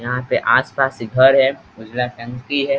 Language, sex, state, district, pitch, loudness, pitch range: Hindi, male, Bihar, East Champaran, 130 Hz, -17 LUFS, 120-135 Hz